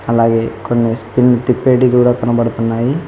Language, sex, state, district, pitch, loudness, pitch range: Telugu, male, Telangana, Mahabubabad, 120 Hz, -14 LUFS, 115-125 Hz